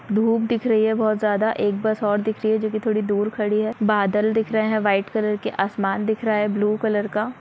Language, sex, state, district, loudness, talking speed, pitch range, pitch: Hindi, female, Bihar, Saran, -21 LUFS, 250 wpm, 210-220 Hz, 215 Hz